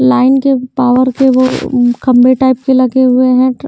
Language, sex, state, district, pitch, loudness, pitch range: Hindi, female, Haryana, Jhajjar, 255 Hz, -10 LUFS, 250-260 Hz